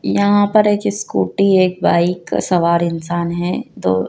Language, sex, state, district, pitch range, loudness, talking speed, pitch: Hindi, female, Madhya Pradesh, Dhar, 170-200 Hz, -16 LUFS, 160 wpm, 180 Hz